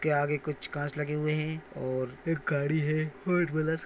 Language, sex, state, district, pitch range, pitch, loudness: Hindi, male, Maharashtra, Nagpur, 145-155 Hz, 150 Hz, -31 LUFS